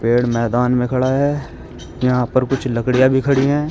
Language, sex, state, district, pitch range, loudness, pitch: Hindi, male, Uttar Pradesh, Shamli, 120-135 Hz, -17 LUFS, 125 Hz